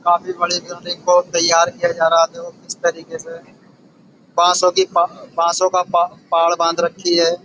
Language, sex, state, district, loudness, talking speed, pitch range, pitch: Hindi, male, Uttar Pradesh, Budaun, -17 LUFS, 200 wpm, 170-180 Hz, 175 Hz